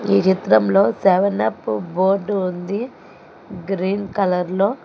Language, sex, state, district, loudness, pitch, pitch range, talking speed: Telugu, female, Telangana, Hyderabad, -19 LUFS, 195 Hz, 185-200 Hz, 110 wpm